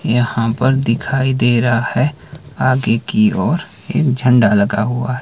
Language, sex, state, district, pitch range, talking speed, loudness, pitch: Hindi, male, Himachal Pradesh, Shimla, 120-140 Hz, 150 wpm, -15 LUFS, 125 Hz